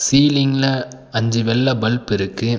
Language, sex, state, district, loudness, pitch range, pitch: Tamil, male, Tamil Nadu, Nilgiris, -18 LUFS, 115-135 Hz, 125 Hz